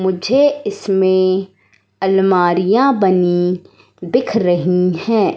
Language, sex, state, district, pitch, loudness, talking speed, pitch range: Hindi, female, Madhya Pradesh, Katni, 190 Hz, -15 LUFS, 80 wpm, 180-215 Hz